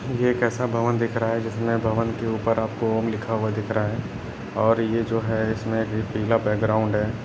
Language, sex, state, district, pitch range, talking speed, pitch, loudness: Hindi, male, Bihar, Jamui, 110-115 Hz, 240 wpm, 115 Hz, -24 LUFS